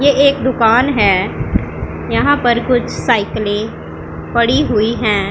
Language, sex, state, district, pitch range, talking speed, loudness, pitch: Hindi, female, Punjab, Pathankot, 215-260 Hz, 125 wpm, -14 LUFS, 235 Hz